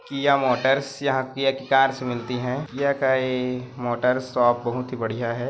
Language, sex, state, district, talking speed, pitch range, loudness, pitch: Hindi, male, Chhattisgarh, Korba, 185 wpm, 125-135 Hz, -23 LUFS, 130 Hz